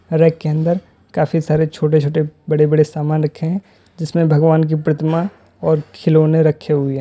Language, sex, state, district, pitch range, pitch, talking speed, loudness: Hindi, male, Uttar Pradesh, Lalitpur, 155-160 Hz, 155 Hz, 180 wpm, -16 LUFS